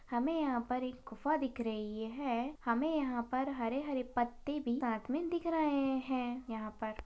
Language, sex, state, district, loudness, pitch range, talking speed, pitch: Hindi, female, Maharashtra, Sindhudurg, -36 LUFS, 235-280 Hz, 185 wpm, 255 Hz